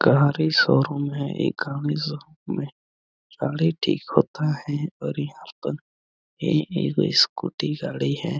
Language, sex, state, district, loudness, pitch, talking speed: Hindi, male, Chhattisgarh, Bastar, -24 LUFS, 140 Hz, 135 wpm